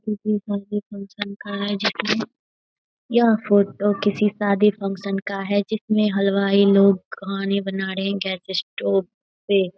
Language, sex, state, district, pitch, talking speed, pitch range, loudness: Hindi, female, Bihar, Saharsa, 200 Hz, 145 wpm, 195-210 Hz, -21 LUFS